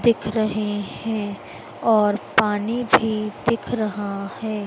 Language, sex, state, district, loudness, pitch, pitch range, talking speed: Hindi, female, Madhya Pradesh, Dhar, -22 LUFS, 215 Hz, 205-225 Hz, 115 wpm